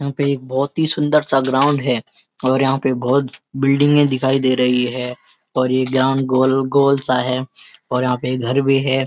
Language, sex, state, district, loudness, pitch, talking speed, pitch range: Hindi, male, Uttarakhand, Uttarkashi, -17 LUFS, 135 Hz, 200 wpm, 130-140 Hz